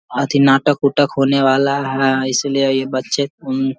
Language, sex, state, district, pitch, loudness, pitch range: Hindi, male, Bihar, Vaishali, 135 Hz, -16 LUFS, 135-140 Hz